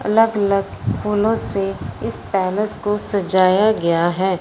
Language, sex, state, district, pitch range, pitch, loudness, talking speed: Hindi, female, Punjab, Fazilka, 170-210 Hz, 190 Hz, -19 LUFS, 125 wpm